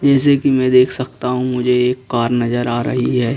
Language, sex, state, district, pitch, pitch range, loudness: Hindi, male, Madhya Pradesh, Bhopal, 125 Hz, 120-130 Hz, -16 LUFS